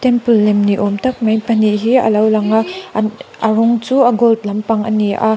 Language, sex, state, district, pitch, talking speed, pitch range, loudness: Mizo, female, Mizoram, Aizawl, 220 Hz, 225 wpm, 210-235 Hz, -14 LUFS